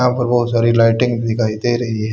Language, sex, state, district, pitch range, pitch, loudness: Hindi, male, Haryana, Charkhi Dadri, 115-120 Hz, 115 Hz, -16 LUFS